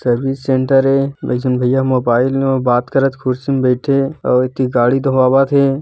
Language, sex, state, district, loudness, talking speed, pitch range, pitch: Hindi, male, Chhattisgarh, Bilaspur, -15 LUFS, 185 wpm, 125-135 Hz, 130 Hz